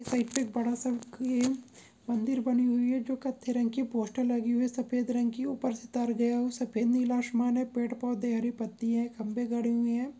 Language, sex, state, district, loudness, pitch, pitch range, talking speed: Hindi, female, Goa, North and South Goa, -30 LUFS, 245 Hz, 235-250 Hz, 225 wpm